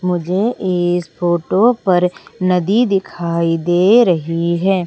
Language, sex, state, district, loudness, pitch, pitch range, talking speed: Hindi, female, Madhya Pradesh, Umaria, -15 LUFS, 180 Hz, 170-195 Hz, 110 wpm